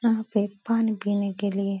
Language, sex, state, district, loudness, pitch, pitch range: Hindi, female, Uttar Pradesh, Etah, -26 LUFS, 205 Hz, 200-225 Hz